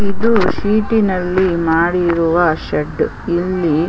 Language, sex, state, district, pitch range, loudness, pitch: Kannada, female, Karnataka, Chamarajanagar, 170-200 Hz, -16 LUFS, 180 Hz